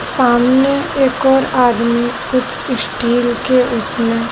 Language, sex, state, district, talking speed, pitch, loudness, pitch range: Hindi, female, Madhya Pradesh, Dhar, 110 wpm, 250 Hz, -14 LUFS, 240-265 Hz